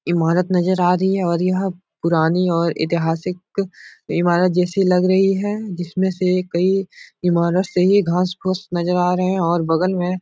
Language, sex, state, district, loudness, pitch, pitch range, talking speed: Hindi, male, Uttar Pradesh, Etah, -19 LUFS, 180 Hz, 175-185 Hz, 180 wpm